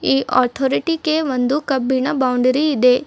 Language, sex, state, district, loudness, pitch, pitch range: Kannada, female, Karnataka, Bidar, -17 LUFS, 265 Hz, 255-290 Hz